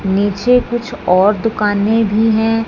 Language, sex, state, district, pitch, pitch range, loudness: Hindi, female, Punjab, Fazilka, 220 Hz, 205-225 Hz, -14 LUFS